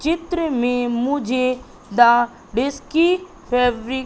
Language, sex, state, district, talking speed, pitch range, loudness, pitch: Hindi, female, Madhya Pradesh, Katni, 90 wpm, 245-315 Hz, -19 LUFS, 255 Hz